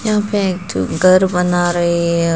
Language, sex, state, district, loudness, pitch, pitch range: Hindi, female, Arunachal Pradesh, Papum Pare, -15 LUFS, 180 Hz, 175-195 Hz